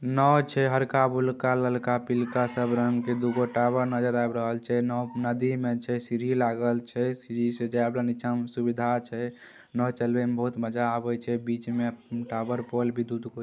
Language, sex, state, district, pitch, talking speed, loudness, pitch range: Maithili, male, Bihar, Saharsa, 120 Hz, 205 wpm, -27 LUFS, 120-125 Hz